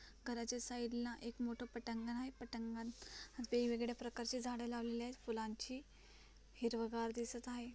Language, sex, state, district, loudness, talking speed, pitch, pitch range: Marathi, female, Maharashtra, Solapur, -45 LUFS, 140 wpm, 235 Hz, 235-245 Hz